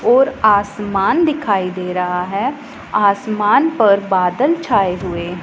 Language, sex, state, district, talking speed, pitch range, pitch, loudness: Hindi, female, Punjab, Pathankot, 120 wpm, 185-260 Hz, 205 Hz, -16 LUFS